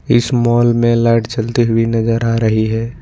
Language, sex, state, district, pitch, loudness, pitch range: Hindi, male, Jharkhand, Ranchi, 115 Hz, -14 LUFS, 115-120 Hz